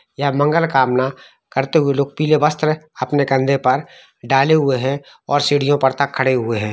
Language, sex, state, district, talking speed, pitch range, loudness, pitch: Hindi, male, Jharkhand, Jamtara, 170 wpm, 130-150 Hz, -17 LUFS, 140 Hz